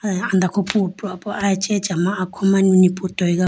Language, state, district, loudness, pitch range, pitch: Idu Mishmi, Arunachal Pradesh, Lower Dibang Valley, -19 LUFS, 185-200 Hz, 190 Hz